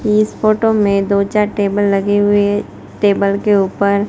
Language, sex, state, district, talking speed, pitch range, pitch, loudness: Hindi, female, Gujarat, Gandhinagar, 160 wpm, 200-210 Hz, 205 Hz, -14 LUFS